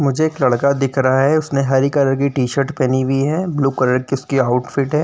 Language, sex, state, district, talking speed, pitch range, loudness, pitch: Hindi, male, Uttar Pradesh, Jyotiba Phule Nagar, 240 wpm, 130-140 Hz, -17 LUFS, 135 Hz